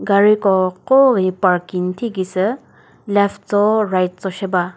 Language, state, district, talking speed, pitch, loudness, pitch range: Chakhesang, Nagaland, Dimapur, 125 wpm, 195 Hz, -17 LUFS, 185-210 Hz